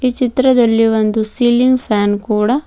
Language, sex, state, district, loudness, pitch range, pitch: Kannada, female, Karnataka, Bidar, -14 LUFS, 215-255 Hz, 240 Hz